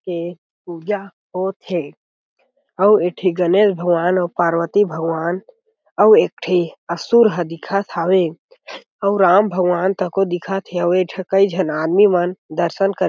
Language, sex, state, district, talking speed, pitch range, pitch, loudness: Chhattisgarhi, male, Chhattisgarh, Jashpur, 160 wpm, 175-200 Hz, 185 Hz, -17 LUFS